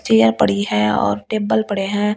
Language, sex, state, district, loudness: Hindi, female, Delhi, New Delhi, -17 LUFS